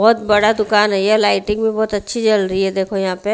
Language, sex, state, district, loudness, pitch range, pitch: Hindi, female, Haryana, Rohtak, -16 LUFS, 195-215 Hz, 210 Hz